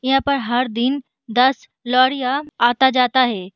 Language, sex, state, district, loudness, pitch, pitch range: Hindi, female, Maharashtra, Chandrapur, -18 LUFS, 255 Hz, 245-265 Hz